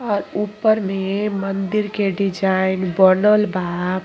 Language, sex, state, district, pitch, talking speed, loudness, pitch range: Bhojpuri, female, Uttar Pradesh, Ghazipur, 195 Hz, 120 wpm, -19 LUFS, 190-210 Hz